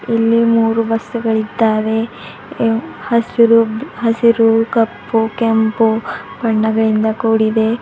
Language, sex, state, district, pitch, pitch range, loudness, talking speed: Kannada, female, Karnataka, Bidar, 225 Hz, 220-230 Hz, -15 LUFS, 85 wpm